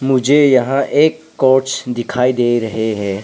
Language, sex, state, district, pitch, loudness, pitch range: Hindi, male, Arunachal Pradesh, Papum Pare, 130 Hz, -14 LUFS, 120-135 Hz